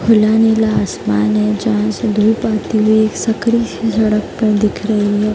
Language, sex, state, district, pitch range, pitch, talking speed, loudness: Hindi, female, Bihar, Darbhanga, 210-220 Hz, 215 Hz, 180 wpm, -14 LUFS